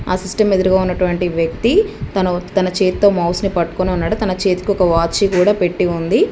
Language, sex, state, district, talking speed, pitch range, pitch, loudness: Telugu, female, Telangana, Mahabubabad, 170 wpm, 180-195 Hz, 185 Hz, -16 LUFS